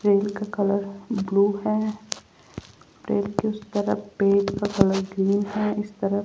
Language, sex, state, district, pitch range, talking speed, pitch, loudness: Hindi, female, Rajasthan, Jaipur, 200-210 Hz, 155 wpm, 205 Hz, -24 LUFS